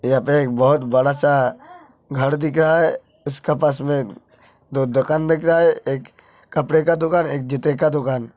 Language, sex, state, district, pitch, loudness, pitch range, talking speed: Hindi, male, Uttar Pradesh, Hamirpur, 145 Hz, -19 LUFS, 135-160 Hz, 195 wpm